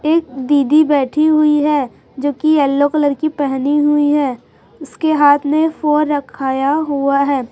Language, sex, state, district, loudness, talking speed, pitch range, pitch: Hindi, female, Chhattisgarh, Raipur, -15 LUFS, 160 wpm, 280-305 Hz, 290 Hz